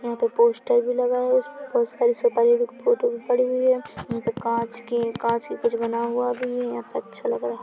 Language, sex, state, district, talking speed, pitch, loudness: Hindi, male, Chhattisgarh, Bilaspur, 260 wpm, 250 Hz, -23 LUFS